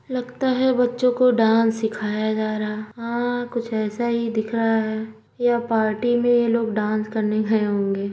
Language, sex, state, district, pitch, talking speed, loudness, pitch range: Hindi, female, Uttar Pradesh, Budaun, 225 Hz, 185 wpm, -22 LUFS, 215-240 Hz